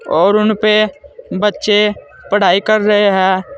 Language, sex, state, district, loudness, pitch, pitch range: Hindi, male, Uttar Pradesh, Saharanpur, -13 LUFS, 210 Hz, 205-215 Hz